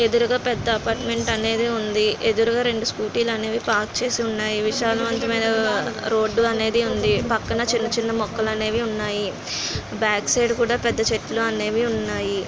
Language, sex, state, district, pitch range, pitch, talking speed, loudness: Telugu, female, Andhra Pradesh, Guntur, 215-235 Hz, 225 Hz, 135 wpm, -22 LUFS